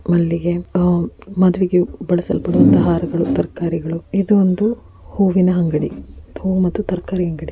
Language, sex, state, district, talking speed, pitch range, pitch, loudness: Kannada, female, Karnataka, Mysore, 40 wpm, 170-185 Hz, 180 Hz, -17 LUFS